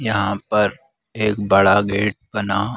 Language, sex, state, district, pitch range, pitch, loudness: Hindi, male, Bihar, Saran, 100-110 Hz, 105 Hz, -18 LUFS